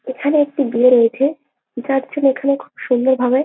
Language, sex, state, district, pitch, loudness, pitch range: Bengali, female, West Bengal, Jalpaiguri, 265 Hz, -16 LUFS, 250-280 Hz